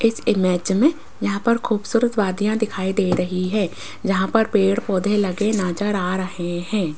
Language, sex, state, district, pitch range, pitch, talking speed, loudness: Hindi, female, Rajasthan, Jaipur, 185-220 Hz, 205 Hz, 165 wpm, -21 LUFS